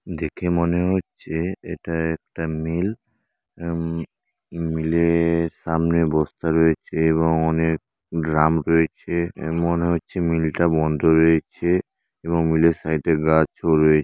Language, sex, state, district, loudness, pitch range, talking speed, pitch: Bengali, male, West Bengal, Paschim Medinipur, -21 LUFS, 80-85 Hz, 120 wpm, 80 Hz